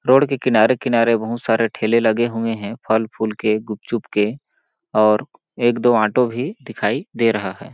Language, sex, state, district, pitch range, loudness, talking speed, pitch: Hindi, male, Chhattisgarh, Balrampur, 110-120 Hz, -19 LUFS, 180 wpm, 115 Hz